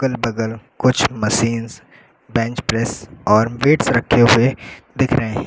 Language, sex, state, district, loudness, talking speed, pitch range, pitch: Hindi, male, Uttar Pradesh, Lucknow, -17 LUFS, 130 wpm, 115-135 Hz, 120 Hz